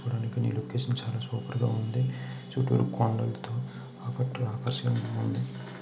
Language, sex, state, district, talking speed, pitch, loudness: Telugu, male, Andhra Pradesh, Srikakulam, 125 wpm, 115 Hz, -31 LUFS